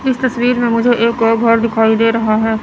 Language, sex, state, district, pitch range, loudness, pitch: Hindi, female, Chandigarh, Chandigarh, 225-240 Hz, -13 LUFS, 230 Hz